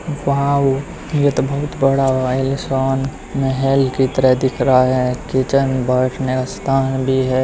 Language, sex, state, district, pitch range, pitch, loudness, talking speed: Hindi, male, Haryana, Rohtak, 130-135 Hz, 135 Hz, -17 LUFS, 145 wpm